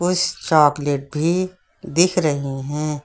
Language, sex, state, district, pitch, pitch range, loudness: Hindi, male, Uttar Pradesh, Lucknow, 155 Hz, 145-180 Hz, -20 LUFS